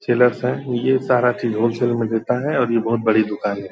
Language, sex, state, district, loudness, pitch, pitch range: Hindi, male, Bihar, Purnia, -19 LUFS, 120 Hz, 115-125 Hz